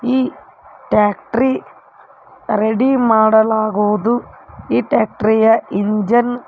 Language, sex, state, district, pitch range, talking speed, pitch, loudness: Kannada, female, Karnataka, Koppal, 215-255 Hz, 85 wpm, 225 Hz, -15 LUFS